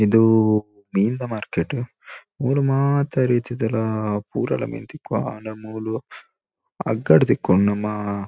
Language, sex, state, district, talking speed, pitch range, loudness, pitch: Tulu, male, Karnataka, Dakshina Kannada, 110 wpm, 105-125 Hz, -21 LUFS, 110 Hz